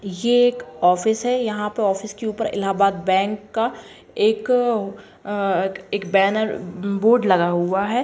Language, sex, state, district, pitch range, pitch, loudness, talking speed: Kumaoni, female, Uttarakhand, Uttarkashi, 195-225 Hz, 205 Hz, -20 LUFS, 150 wpm